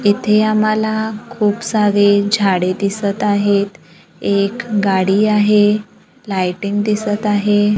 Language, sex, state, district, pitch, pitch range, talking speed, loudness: Marathi, female, Maharashtra, Gondia, 205 Hz, 200-210 Hz, 95 wpm, -15 LUFS